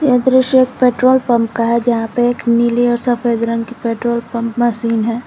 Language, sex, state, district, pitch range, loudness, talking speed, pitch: Hindi, female, Jharkhand, Garhwa, 230-245 Hz, -15 LUFS, 205 wpm, 240 Hz